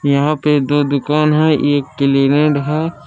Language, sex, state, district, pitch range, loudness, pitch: Hindi, male, Jharkhand, Palamu, 140-150 Hz, -14 LUFS, 145 Hz